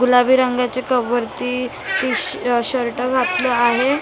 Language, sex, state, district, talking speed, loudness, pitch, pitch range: Marathi, female, Maharashtra, Mumbai Suburban, 135 wpm, -18 LUFS, 250 Hz, 245-255 Hz